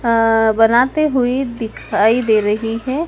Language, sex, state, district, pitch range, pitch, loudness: Hindi, female, Madhya Pradesh, Dhar, 220-255 Hz, 230 Hz, -15 LUFS